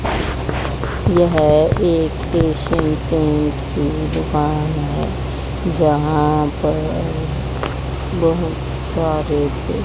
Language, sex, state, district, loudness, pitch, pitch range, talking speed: Hindi, male, Haryana, Rohtak, -18 LUFS, 150 Hz, 135-160 Hz, 65 wpm